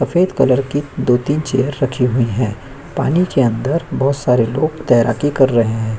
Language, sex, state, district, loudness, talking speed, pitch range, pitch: Hindi, male, Chhattisgarh, Korba, -16 LUFS, 180 wpm, 125-145 Hz, 135 Hz